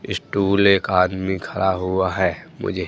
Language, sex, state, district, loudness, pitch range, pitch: Hindi, male, Madhya Pradesh, Katni, -20 LUFS, 95-100 Hz, 95 Hz